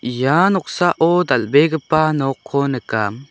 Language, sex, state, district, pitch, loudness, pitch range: Garo, male, Meghalaya, South Garo Hills, 140 Hz, -17 LUFS, 130-165 Hz